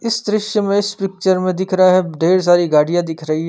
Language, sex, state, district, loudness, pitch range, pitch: Hindi, male, Chandigarh, Chandigarh, -16 LUFS, 175-200 Hz, 185 Hz